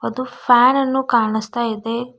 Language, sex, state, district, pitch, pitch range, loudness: Kannada, female, Karnataka, Bidar, 240 Hz, 230-255 Hz, -17 LUFS